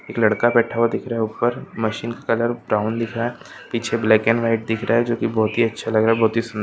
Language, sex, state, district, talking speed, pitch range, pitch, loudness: Hindi, male, Andhra Pradesh, Krishna, 280 wpm, 110-115 Hz, 115 Hz, -20 LUFS